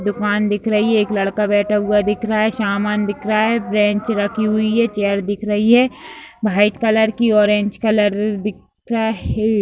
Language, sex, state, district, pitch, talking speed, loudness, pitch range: Hindi, female, Bihar, Madhepura, 210 Hz, 195 wpm, -17 LUFS, 205-220 Hz